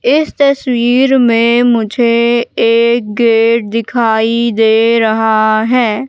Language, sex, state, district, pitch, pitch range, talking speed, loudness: Hindi, female, Madhya Pradesh, Katni, 235 Hz, 225-245 Hz, 100 wpm, -11 LUFS